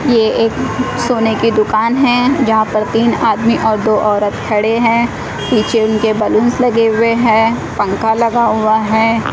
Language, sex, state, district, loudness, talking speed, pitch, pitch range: Hindi, female, Odisha, Malkangiri, -13 LUFS, 160 wpm, 225 Hz, 220-235 Hz